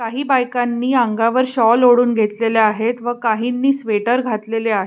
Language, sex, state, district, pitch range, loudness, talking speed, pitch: Marathi, female, Maharashtra, Pune, 225-245 Hz, -16 LUFS, 150 wpm, 235 Hz